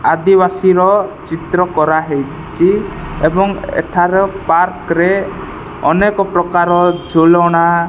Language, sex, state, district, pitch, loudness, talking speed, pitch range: Odia, male, Odisha, Malkangiri, 175 Hz, -13 LUFS, 85 wpm, 165-190 Hz